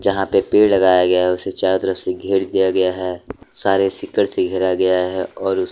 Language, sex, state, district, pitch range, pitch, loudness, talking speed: Hindi, male, Jharkhand, Deoghar, 90-95 Hz, 95 Hz, -17 LUFS, 210 wpm